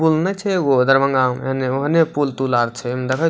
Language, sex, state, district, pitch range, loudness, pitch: Maithili, male, Bihar, Supaul, 130-160 Hz, -18 LUFS, 135 Hz